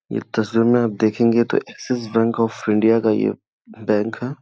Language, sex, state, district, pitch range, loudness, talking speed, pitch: Hindi, male, Uttar Pradesh, Gorakhpur, 110-120 Hz, -19 LUFS, 190 wpm, 115 Hz